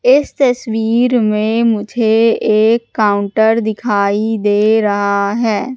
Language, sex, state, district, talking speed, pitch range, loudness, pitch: Hindi, female, Madhya Pradesh, Katni, 105 wpm, 210-230 Hz, -14 LUFS, 220 Hz